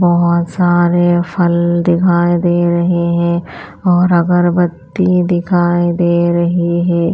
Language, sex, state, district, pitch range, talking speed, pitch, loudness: Hindi, female, Punjab, Pathankot, 170-175 Hz, 110 wpm, 175 Hz, -13 LUFS